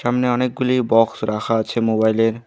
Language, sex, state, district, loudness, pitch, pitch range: Bengali, male, West Bengal, Alipurduar, -18 LUFS, 115 Hz, 110-125 Hz